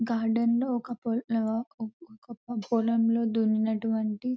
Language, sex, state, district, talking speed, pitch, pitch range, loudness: Telugu, female, Telangana, Nalgonda, 125 wpm, 230 Hz, 220-235 Hz, -28 LUFS